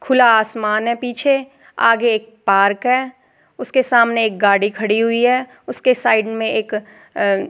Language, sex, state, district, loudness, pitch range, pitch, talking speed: Hindi, female, Rajasthan, Jaipur, -16 LUFS, 215-250 Hz, 230 Hz, 160 wpm